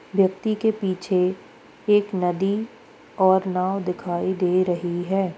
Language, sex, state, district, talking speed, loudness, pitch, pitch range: Hindi, female, Bihar, Gopalganj, 120 wpm, -23 LUFS, 190 Hz, 180-200 Hz